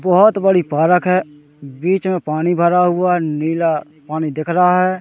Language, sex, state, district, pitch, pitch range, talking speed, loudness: Hindi, male, Madhya Pradesh, Katni, 175 Hz, 155-185 Hz, 170 wpm, -16 LUFS